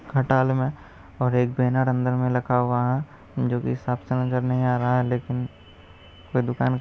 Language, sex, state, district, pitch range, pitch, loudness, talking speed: Hindi, male, Bihar, Araria, 120-125 Hz, 125 Hz, -24 LUFS, 185 wpm